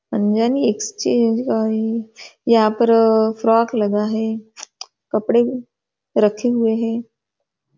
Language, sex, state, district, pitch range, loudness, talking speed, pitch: Hindi, female, Maharashtra, Nagpur, 215-235 Hz, -18 LUFS, 100 wpm, 225 Hz